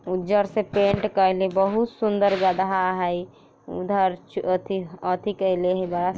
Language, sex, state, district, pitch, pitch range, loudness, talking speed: Bajjika, female, Bihar, Vaishali, 190 Hz, 185-200 Hz, -23 LUFS, 145 wpm